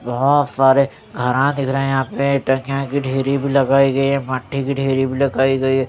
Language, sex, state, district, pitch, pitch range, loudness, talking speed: Hindi, male, Odisha, Nuapada, 135 Hz, 135-140 Hz, -17 LUFS, 195 wpm